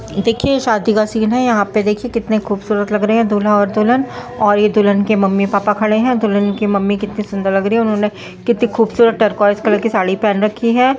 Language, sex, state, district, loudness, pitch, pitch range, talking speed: Hindi, female, Bihar, Saharsa, -15 LUFS, 215 Hz, 205-225 Hz, 130 wpm